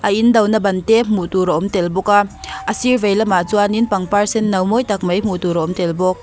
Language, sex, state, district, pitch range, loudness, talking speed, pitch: Mizo, female, Mizoram, Aizawl, 185-220 Hz, -16 LUFS, 270 wpm, 205 Hz